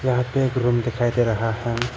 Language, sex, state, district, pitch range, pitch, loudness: Hindi, male, Arunachal Pradesh, Papum Pare, 120-125 Hz, 120 Hz, -22 LUFS